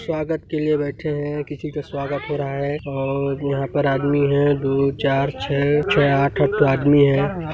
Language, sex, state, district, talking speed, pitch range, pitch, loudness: Hindi, male, Chhattisgarh, Sarguja, 200 wpm, 140-150 Hz, 140 Hz, -20 LUFS